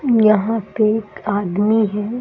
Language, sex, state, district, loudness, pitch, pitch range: Hindi, male, Bihar, East Champaran, -17 LUFS, 215 Hz, 205-225 Hz